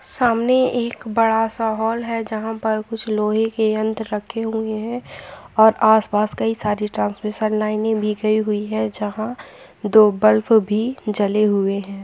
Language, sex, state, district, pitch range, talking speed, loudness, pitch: Hindi, female, Chhattisgarh, Sukma, 210-225 Hz, 160 wpm, -19 LUFS, 220 Hz